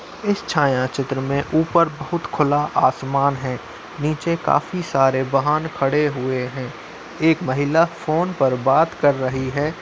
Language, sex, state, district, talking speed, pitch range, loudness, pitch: Hindi, male, Uttar Pradesh, Muzaffarnagar, 145 wpm, 135-160 Hz, -20 LUFS, 145 Hz